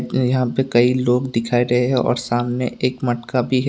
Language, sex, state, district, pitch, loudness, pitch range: Hindi, male, Tripura, West Tripura, 125 Hz, -19 LUFS, 120-130 Hz